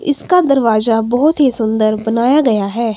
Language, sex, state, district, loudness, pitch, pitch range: Hindi, female, Himachal Pradesh, Shimla, -13 LUFS, 235 Hz, 220-285 Hz